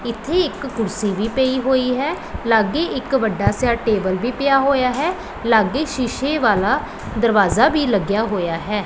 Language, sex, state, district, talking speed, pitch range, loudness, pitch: Punjabi, female, Punjab, Pathankot, 165 wpm, 210-270 Hz, -19 LUFS, 235 Hz